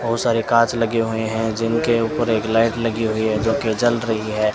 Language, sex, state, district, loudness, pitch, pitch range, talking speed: Hindi, male, Rajasthan, Bikaner, -19 LUFS, 115 Hz, 110-115 Hz, 225 wpm